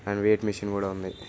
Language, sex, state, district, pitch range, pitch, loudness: Telugu, male, Telangana, Nalgonda, 100-105 Hz, 100 Hz, -27 LUFS